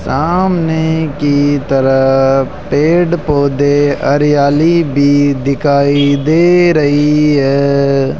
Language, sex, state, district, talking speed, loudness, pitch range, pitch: Hindi, male, Rajasthan, Jaipur, 80 wpm, -11 LUFS, 140-160 Hz, 145 Hz